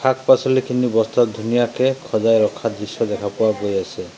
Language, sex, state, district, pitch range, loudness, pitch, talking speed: Assamese, male, Assam, Sonitpur, 110-130 Hz, -19 LUFS, 115 Hz, 160 wpm